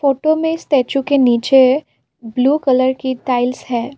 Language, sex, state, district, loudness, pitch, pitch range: Hindi, female, Assam, Kamrup Metropolitan, -15 LUFS, 260 Hz, 250-280 Hz